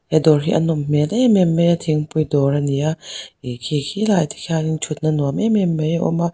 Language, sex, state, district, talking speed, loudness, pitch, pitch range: Mizo, female, Mizoram, Aizawl, 255 wpm, -18 LUFS, 155 Hz, 150-170 Hz